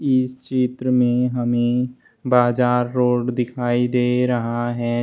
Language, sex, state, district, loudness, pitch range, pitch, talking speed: Hindi, male, Uttar Pradesh, Shamli, -20 LUFS, 120-125 Hz, 125 Hz, 120 wpm